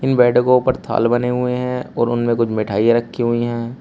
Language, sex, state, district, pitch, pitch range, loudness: Hindi, male, Uttar Pradesh, Shamli, 120 Hz, 120-125 Hz, -17 LUFS